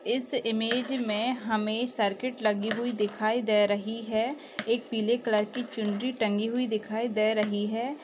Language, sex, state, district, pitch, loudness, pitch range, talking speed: Hindi, female, Chhattisgarh, Raigarh, 225 Hz, -28 LUFS, 215-245 Hz, 165 wpm